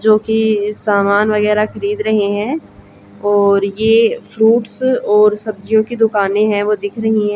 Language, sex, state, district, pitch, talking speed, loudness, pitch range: Hindi, female, Haryana, Jhajjar, 210 Hz, 155 wpm, -14 LUFS, 205-220 Hz